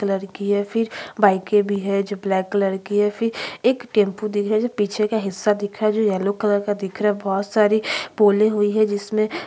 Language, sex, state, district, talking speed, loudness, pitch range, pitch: Hindi, female, Chhattisgarh, Sukma, 220 wpm, -20 LUFS, 200-215 Hz, 205 Hz